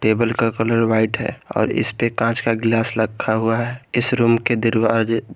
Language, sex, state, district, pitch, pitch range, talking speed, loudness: Hindi, male, Jharkhand, Garhwa, 115 Hz, 110-115 Hz, 200 wpm, -19 LUFS